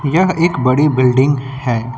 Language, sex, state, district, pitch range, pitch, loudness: Hindi, male, Uttar Pradesh, Lucknow, 130-150 Hz, 135 Hz, -14 LUFS